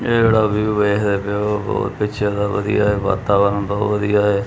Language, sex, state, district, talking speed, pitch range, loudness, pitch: Punjabi, male, Punjab, Kapurthala, 200 wpm, 100-105 Hz, -18 LUFS, 105 Hz